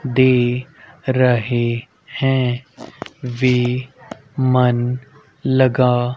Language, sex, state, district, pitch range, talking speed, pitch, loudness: Hindi, male, Haryana, Rohtak, 120-130 Hz, 60 wpm, 125 Hz, -18 LUFS